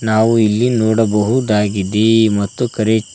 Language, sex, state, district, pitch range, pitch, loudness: Kannada, male, Karnataka, Koppal, 105-115 Hz, 110 Hz, -14 LUFS